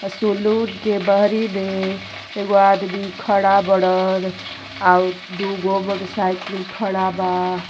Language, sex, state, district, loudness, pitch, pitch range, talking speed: Bhojpuri, female, Uttar Pradesh, Ghazipur, -19 LUFS, 195 Hz, 185-200 Hz, 80 wpm